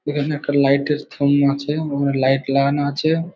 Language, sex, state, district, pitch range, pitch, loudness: Bengali, male, West Bengal, Malda, 140-150 Hz, 145 Hz, -19 LUFS